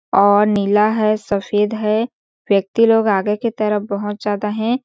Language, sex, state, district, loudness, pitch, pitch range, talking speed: Hindi, female, Chhattisgarh, Sarguja, -17 LUFS, 210 Hz, 205-220 Hz, 160 wpm